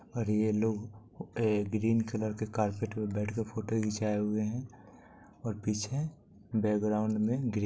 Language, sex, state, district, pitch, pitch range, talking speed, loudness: Maithili, male, Bihar, Supaul, 110 Hz, 105-110 Hz, 155 wpm, -33 LUFS